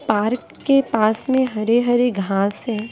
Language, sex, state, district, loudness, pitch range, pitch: Hindi, female, Bihar, Patna, -19 LUFS, 215-250 Hz, 230 Hz